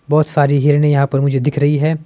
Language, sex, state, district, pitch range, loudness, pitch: Hindi, male, Himachal Pradesh, Shimla, 140-150 Hz, -14 LUFS, 145 Hz